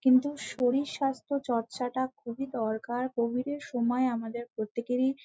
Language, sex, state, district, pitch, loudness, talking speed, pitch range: Bengali, female, West Bengal, Malda, 250 Hz, -31 LUFS, 135 wpm, 235-270 Hz